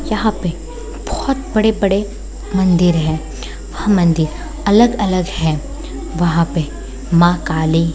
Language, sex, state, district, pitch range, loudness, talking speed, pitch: Hindi, female, Bihar, Sitamarhi, 160-205 Hz, -16 LUFS, 135 wpm, 175 Hz